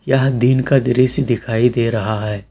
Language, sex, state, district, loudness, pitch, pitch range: Hindi, male, Jharkhand, Ranchi, -16 LUFS, 125 Hz, 115-130 Hz